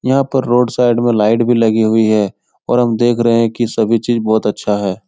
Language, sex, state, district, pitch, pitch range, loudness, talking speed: Hindi, male, Bihar, Supaul, 115 Hz, 110-120 Hz, -14 LUFS, 250 wpm